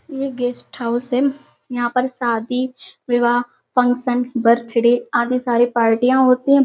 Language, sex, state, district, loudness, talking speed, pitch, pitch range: Hindi, female, Uttar Pradesh, Hamirpur, -18 LUFS, 135 wpm, 245 Hz, 240-255 Hz